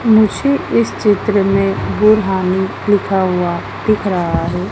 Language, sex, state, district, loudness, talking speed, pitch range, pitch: Hindi, female, Madhya Pradesh, Dhar, -15 LUFS, 115 wpm, 185-215 Hz, 195 Hz